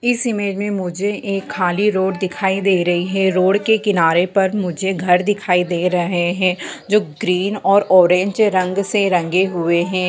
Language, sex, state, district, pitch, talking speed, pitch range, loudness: Hindi, female, Bihar, Sitamarhi, 190 Hz, 180 wpm, 180-200 Hz, -17 LUFS